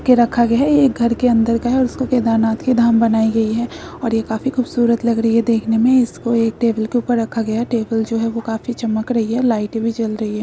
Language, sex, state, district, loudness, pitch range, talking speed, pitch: Hindi, female, Uttarakhand, Uttarkashi, -17 LUFS, 225-245 Hz, 270 wpm, 230 Hz